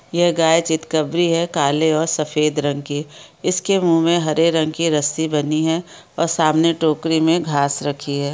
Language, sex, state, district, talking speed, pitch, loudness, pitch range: Hindi, female, Chhattisgarh, Jashpur, 180 wpm, 160 Hz, -18 LUFS, 150-165 Hz